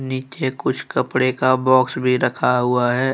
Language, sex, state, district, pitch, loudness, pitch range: Hindi, male, Jharkhand, Deoghar, 130 Hz, -19 LUFS, 125-130 Hz